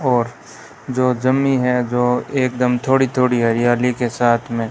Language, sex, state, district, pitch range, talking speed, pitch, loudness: Hindi, male, Rajasthan, Bikaner, 120-130 Hz, 155 wpm, 125 Hz, -18 LUFS